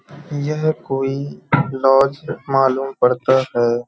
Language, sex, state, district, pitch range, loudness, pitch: Hindi, male, Uttar Pradesh, Hamirpur, 130-145 Hz, -18 LUFS, 135 Hz